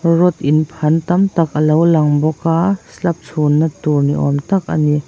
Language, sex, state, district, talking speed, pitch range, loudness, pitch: Mizo, female, Mizoram, Aizawl, 200 wpm, 150-170 Hz, -15 LUFS, 155 Hz